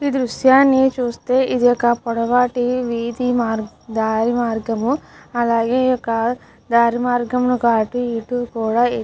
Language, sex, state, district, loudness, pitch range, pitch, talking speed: Telugu, female, Andhra Pradesh, Chittoor, -18 LUFS, 230-250 Hz, 240 Hz, 125 wpm